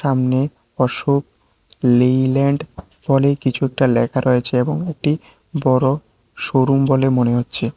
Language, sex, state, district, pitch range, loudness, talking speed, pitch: Bengali, male, Tripura, West Tripura, 125-140 Hz, -17 LUFS, 115 wpm, 130 Hz